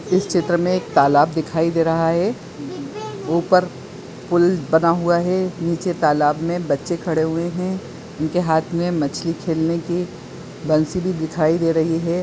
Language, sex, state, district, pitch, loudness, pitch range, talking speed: Hindi, female, Chhattisgarh, Bilaspur, 170 Hz, -19 LUFS, 160-175 Hz, 160 wpm